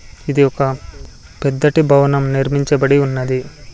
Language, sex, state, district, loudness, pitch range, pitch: Telugu, male, Andhra Pradesh, Sri Satya Sai, -15 LUFS, 135-140 Hz, 140 Hz